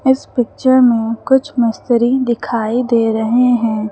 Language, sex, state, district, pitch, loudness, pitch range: Hindi, female, Uttar Pradesh, Lucknow, 240 Hz, -14 LUFS, 230-255 Hz